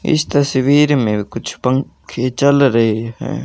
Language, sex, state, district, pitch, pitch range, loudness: Hindi, male, Haryana, Jhajjar, 130 Hz, 115-145 Hz, -15 LUFS